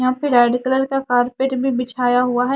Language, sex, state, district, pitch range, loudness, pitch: Hindi, female, Haryana, Charkhi Dadri, 245-265 Hz, -18 LUFS, 250 Hz